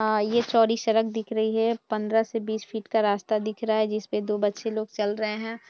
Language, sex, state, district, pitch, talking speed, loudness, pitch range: Hindi, female, Bihar, Purnia, 220 Hz, 230 wpm, -26 LUFS, 215-225 Hz